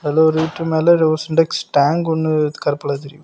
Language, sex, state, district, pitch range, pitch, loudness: Tamil, male, Tamil Nadu, Kanyakumari, 145-160 Hz, 160 Hz, -17 LUFS